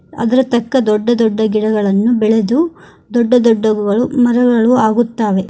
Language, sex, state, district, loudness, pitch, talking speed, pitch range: Kannada, female, Karnataka, Koppal, -13 LUFS, 230 Hz, 120 wpm, 215-245 Hz